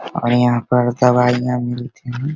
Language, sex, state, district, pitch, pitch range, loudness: Hindi, male, Bihar, Begusarai, 125 Hz, 120-125 Hz, -17 LUFS